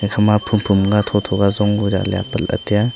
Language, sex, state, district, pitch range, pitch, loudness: Wancho, male, Arunachal Pradesh, Longding, 100-105 Hz, 105 Hz, -17 LUFS